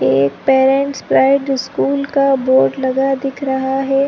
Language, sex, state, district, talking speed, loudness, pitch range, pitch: Hindi, female, Chhattisgarh, Rajnandgaon, 145 wpm, -15 LUFS, 260-275 Hz, 270 Hz